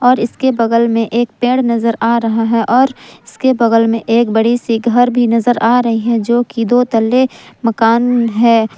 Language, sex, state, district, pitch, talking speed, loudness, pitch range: Hindi, female, Jharkhand, Palamu, 235 Hz, 200 wpm, -13 LUFS, 230-245 Hz